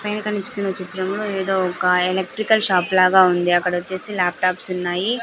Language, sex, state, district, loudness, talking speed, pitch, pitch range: Telugu, female, Andhra Pradesh, Sri Satya Sai, -19 LUFS, 140 wpm, 185 Hz, 180-200 Hz